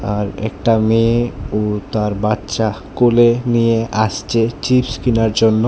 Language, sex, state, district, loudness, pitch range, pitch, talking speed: Bengali, male, Tripura, West Tripura, -16 LUFS, 105-120 Hz, 110 Hz, 125 wpm